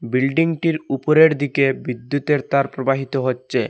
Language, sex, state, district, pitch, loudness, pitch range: Bengali, male, Assam, Hailakandi, 135 Hz, -19 LUFS, 130-150 Hz